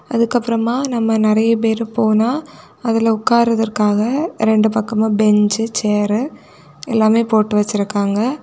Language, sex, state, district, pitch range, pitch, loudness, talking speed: Tamil, female, Tamil Nadu, Kanyakumari, 215-230 Hz, 225 Hz, -16 LUFS, 100 wpm